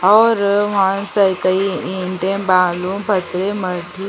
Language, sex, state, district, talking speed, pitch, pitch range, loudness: Hindi, female, Chhattisgarh, Sarguja, 120 wpm, 195 Hz, 185-200 Hz, -17 LUFS